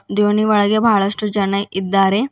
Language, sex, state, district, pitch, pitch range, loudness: Kannada, female, Karnataka, Bidar, 205 Hz, 195-210 Hz, -16 LUFS